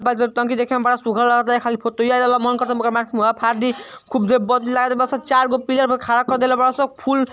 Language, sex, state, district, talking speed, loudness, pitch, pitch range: Bhojpuri, female, Uttar Pradesh, Ghazipur, 145 wpm, -18 LUFS, 245 Hz, 240-255 Hz